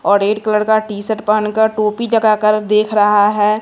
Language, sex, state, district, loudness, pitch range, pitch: Hindi, female, Bihar, West Champaran, -14 LUFS, 210-215 Hz, 215 Hz